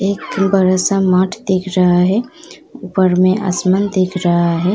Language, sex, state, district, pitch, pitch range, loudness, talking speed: Hindi, female, Uttar Pradesh, Muzaffarnagar, 185 Hz, 185-195 Hz, -15 LUFS, 165 wpm